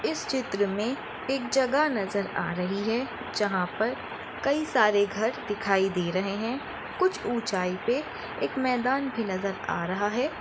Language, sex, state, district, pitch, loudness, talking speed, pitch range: Hindi, female, Maharashtra, Nagpur, 215 Hz, -28 LUFS, 160 wpm, 195-260 Hz